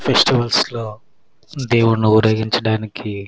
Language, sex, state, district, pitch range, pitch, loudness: Telugu, male, Andhra Pradesh, Krishna, 110-120 Hz, 110 Hz, -16 LUFS